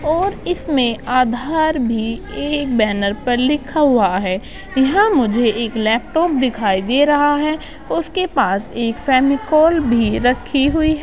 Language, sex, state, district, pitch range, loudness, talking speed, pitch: Hindi, female, Uttar Pradesh, Budaun, 230-305 Hz, -17 LUFS, 140 wpm, 265 Hz